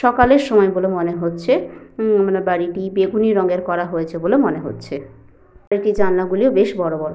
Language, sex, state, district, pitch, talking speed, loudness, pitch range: Bengali, female, Jharkhand, Sahebganj, 185 Hz, 170 wpm, -18 LUFS, 165-200 Hz